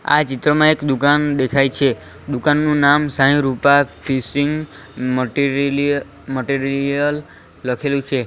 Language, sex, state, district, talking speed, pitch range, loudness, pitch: Gujarati, male, Gujarat, Valsad, 110 wpm, 135-145 Hz, -17 LUFS, 140 Hz